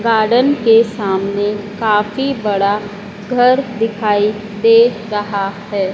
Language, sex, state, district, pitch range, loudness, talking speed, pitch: Hindi, female, Madhya Pradesh, Dhar, 205-230 Hz, -15 LUFS, 100 wpm, 210 Hz